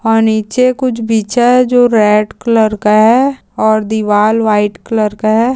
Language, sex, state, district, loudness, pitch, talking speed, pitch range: Hindi, female, Maharashtra, Dhule, -11 LUFS, 220 Hz, 160 wpm, 215-240 Hz